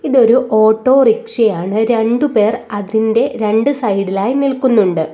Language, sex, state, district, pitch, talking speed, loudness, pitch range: Malayalam, female, Kerala, Kollam, 225 Hz, 95 wpm, -13 LUFS, 210-255 Hz